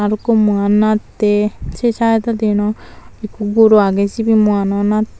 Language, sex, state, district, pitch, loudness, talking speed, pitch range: Chakma, female, Tripura, Dhalai, 215 Hz, -14 LUFS, 140 wpm, 205-220 Hz